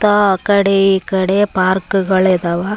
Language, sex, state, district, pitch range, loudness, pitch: Kannada, male, Karnataka, Raichur, 185-200 Hz, -14 LUFS, 195 Hz